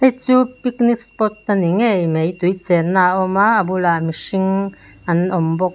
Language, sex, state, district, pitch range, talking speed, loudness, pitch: Mizo, female, Mizoram, Aizawl, 175-225 Hz, 200 wpm, -17 LUFS, 190 Hz